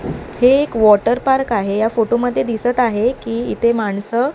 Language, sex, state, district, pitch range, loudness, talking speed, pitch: Marathi, female, Maharashtra, Mumbai Suburban, 220-245 Hz, -16 LUFS, 180 wpm, 235 Hz